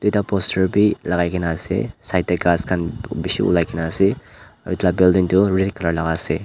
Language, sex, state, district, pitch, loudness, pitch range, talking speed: Nagamese, male, Nagaland, Dimapur, 90 Hz, -19 LUFS, 85-95 Hz, 195 wpm